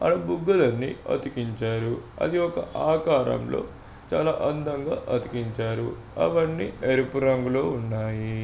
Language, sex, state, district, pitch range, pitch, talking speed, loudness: Telugu, male, Andhra Pradesh, Srikakulam, 115-140 Hz, 125 Hz, 90 wpm, -26 LUFS